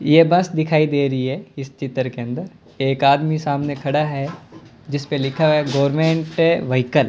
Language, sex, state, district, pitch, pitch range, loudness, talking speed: Hindi, male, Rajasthan, Bikaner, 145 Hz, 135-155 Hz, -19 LUFS, 185 wpm